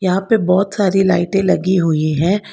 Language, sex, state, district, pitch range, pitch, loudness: Hindi, female, Karnataka, Bangalore, 180-195 Hz, 185 Hz, -15 LUFS